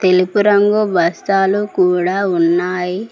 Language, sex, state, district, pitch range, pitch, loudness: Telugu, female, Telangana, Mahabubabad, 180-205 Hz, 190 Hz, -15 LUFS